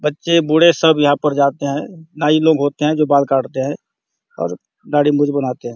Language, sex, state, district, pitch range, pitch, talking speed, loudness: Hindi, male, Chhattisgarh, Bastar, 140-155 Hz, 145 Hz, 220 wpm, -16 LUFS